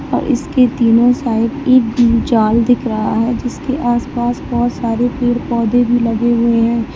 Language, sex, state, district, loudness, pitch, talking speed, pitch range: Hindi, female, Uttar Pradesh, Lalitpur, -14 LUFS, 240 Hz, 165 wpm, 230-245 Hz